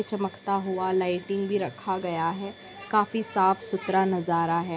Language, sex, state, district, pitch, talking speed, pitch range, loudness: Hindi, female, Bihar, Lakhisarai, 190 Hz, 150 wpm, 180-200 Hz, -27 LUFS